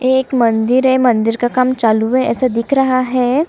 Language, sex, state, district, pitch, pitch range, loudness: Hindi, female, Chhattisgarh, Kabirdham, 255 Hz, 235-260 Hz, -14 LUFS